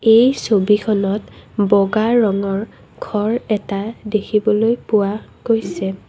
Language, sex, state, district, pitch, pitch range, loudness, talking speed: Assamese, female, Assam, Kamrup Metropolitan, 210 Hz, 200-225 Hz, -18 LUFS, 90 wpm